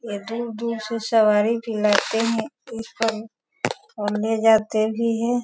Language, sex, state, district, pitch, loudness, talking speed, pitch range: Hindi, female, Bihar, Sitamarhi, 225 Hz, -22 LUFS, 175 wpm, 215-230 Hz